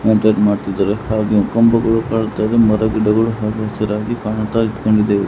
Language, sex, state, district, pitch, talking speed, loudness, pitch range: Kannada, male, Karnataka, Mysore, 110 Hz, 100 wpm, -16 LUFS, 105-110 Hz